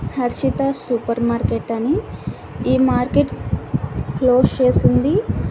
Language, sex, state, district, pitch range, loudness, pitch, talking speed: Telugu, female, Andhra Pradesh, Annamaya, 235-260 Hz, -19 LUFS, 250 Hz, 85 wpm